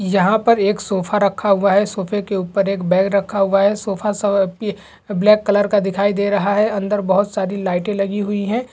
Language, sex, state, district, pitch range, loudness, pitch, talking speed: Hindi, male, Chhattisgarh, Sukma, 195-210 Hz, -17 LUFS, 200 Hz, 200 wpm